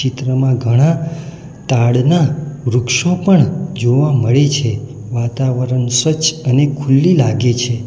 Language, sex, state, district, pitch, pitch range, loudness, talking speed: Gujarati, male, Gujarat, Valsad, 135 Hz, 125-155 Hz, -14 LUFS, 105 wpm